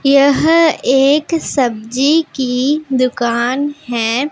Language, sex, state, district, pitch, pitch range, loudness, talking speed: Hindi, female, Punjab, Pathankot, 275 Hz, 250-295 Hz, -14 LUFS, 85 wpm